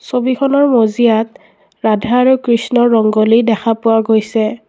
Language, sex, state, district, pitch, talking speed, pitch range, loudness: Assamese, female, Assam, Kamrup Metropolitan, 230 Hz, 115 wpm, 220-245 Hz, -13 LUFS